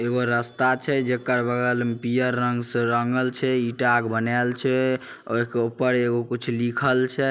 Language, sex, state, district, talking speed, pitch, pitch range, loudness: Maithili, male, Bihar, Samastipur, 180 wpm, 125 Hz, 120-130 Hz, -23 LUFS